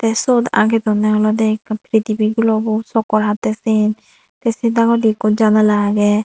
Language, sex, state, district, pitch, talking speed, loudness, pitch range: Chakma, female, Tripura, Unakoti, 220 Hz, 165 wpm, -16 LUFS, 215-225 Hz